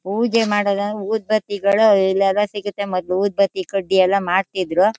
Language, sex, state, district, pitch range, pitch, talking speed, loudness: Kannada, female, Karnataka, Shimoga, 190-205 Hz, 200 Hz, 130 wpm, -18 LUFS